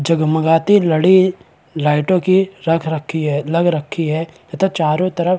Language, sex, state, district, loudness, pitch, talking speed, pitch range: Hindi, male, Chhattisgarh, Balrampur, -16 LUFS, 165 Hz, 155 wpm, 155-185 Hz